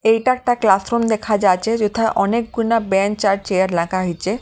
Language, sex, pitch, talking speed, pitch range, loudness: Bengali, female, 210 Hz, 190 wpm, 195-230 Hz, -18 LUFS